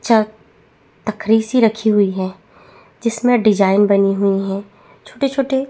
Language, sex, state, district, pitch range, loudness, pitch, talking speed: Hindi, female, Chhattisgarh, Bastar, 200-235 Hz, -17 LUFS, 215 Hz, 125 wpm